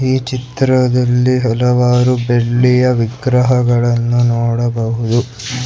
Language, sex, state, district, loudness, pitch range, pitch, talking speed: Kannada, male, Karnataka, Bangalore, -14 LUFS, 120-125 Hz, 125 Hz, 65 wpm